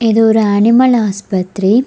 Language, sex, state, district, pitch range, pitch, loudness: Tamil, female, Tamil Nadu, Kanyakumari, 200-230 Hz, 220 Hz, -12 LUFS